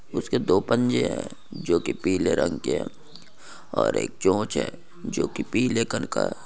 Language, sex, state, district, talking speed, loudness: Hindi, male, Bihar, Saharsa, 165 wpm, -25 LUFS